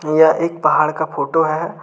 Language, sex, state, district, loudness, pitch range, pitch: Hindi, male, Jharkhand, Deoghar, -16 LUFS, 155-165 Hz, 160 Hz